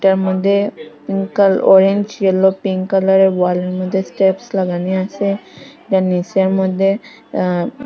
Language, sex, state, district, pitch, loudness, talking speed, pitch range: Bengali, female, Assam, Hailakandi, 190 Hz, -16 LUFS, 130 wpm, 185-195 Hz